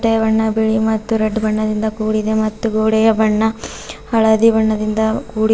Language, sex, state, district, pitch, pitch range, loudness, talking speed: Kannada, female, Karnataka, Bidar, 220 Hz, 215-220 Hz, -16 LUFS, 130 wpm